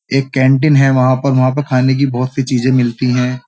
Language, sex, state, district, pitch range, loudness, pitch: Hindi, male, Uttar Pradesh, Jyotiba Phule Nagar, 125-135 Hz, -13 LUFS, 130 Hz